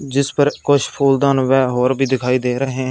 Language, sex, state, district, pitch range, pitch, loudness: Hindi, male, Punjab, Fazilka, 130-140 Hz, 135 Hz, -16 LUFS